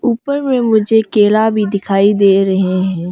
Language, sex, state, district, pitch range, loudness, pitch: Hindi, female, Arunachal Pradesh, Longding, 195-220 Hz, -13 LUFS, 210 Hz